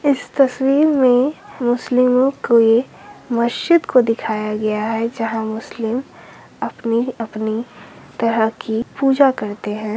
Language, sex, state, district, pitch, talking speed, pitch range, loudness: Hindi, female, Uttar Pradesh, Hamirpur, 235 Hz, 120 wpm, 220-255 Hz, -18 LUFS